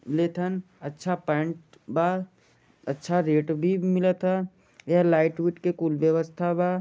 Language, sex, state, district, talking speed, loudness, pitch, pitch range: Bhojpuri, male, Jharkhand, Sahebganj, 105 wpm, -26 LUFS, 175 Hz, 160-180 Hz